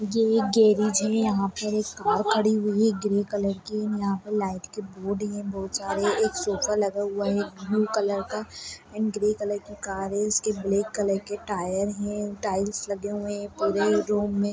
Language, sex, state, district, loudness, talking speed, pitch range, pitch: Hindi, female, Bihar, Darbhanga, -26 LUFS, 180 wpm, 200-210 Hz, 205 Hz